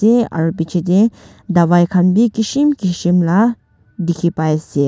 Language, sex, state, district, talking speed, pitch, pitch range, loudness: Nagamese, female, Nagaland, Dimapur, 135 wpm, 180 Hz, 170-220 Hz, -15 LUFS